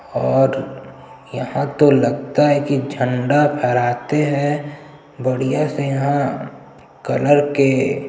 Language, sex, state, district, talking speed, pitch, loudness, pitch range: Hindi, male, Chhattisgarh, Jashpur, 110 wpm, 140 Hz, -18 LUFS, 135-145 Hz